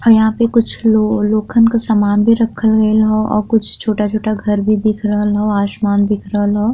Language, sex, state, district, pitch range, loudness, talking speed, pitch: Bhojpuri, female, Uttar Pradesh, Deoria, 210-220 Hz, -14 LUFS, 215 wpm, 215 Hz